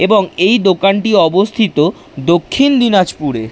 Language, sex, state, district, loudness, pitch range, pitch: Bengali, male, West Bengal, Dakshin Dinajpur, -12 LUFS, 165-210 Hz, 195 Hz